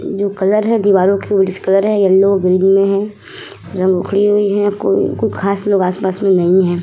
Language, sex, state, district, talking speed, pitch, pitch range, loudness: Hindi, female, Uttar Pradesh, Muzaffarnagar, 230 wpm, 195 Hz, 190-200 Hz, -14 LUFS